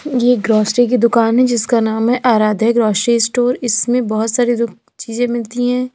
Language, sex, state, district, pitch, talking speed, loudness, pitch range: Hindi, female, Uttar Pradesh, Lalitpur, 235 Hz, 170 wpm, -15 LUFS, 225-245 Hz